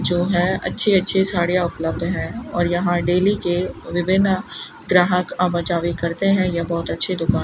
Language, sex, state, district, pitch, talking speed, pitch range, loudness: Hindi, female, Rajasthan, Bikaner, 180 Hz, 175 wpm, 175-185 Hz, -19 LUFS